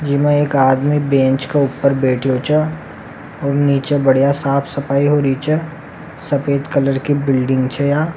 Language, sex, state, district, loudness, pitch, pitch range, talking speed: Rajasthani, male, Rajasthan, Nagaur, -16 LUFS, 140 Hz, 135-145 Hz, 160 wpm